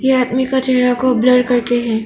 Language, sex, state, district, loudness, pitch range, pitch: Hindi, female, Arunachal Pradesh, Longding, -14 LUFS, 245-260 Hz, 250 Hz